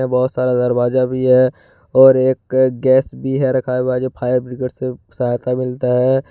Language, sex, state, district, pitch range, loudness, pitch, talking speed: Hindi, male, Jharkhand, Ranchi, 125-130 Hz, -16 LUFS, 130 Hz, 180 wpm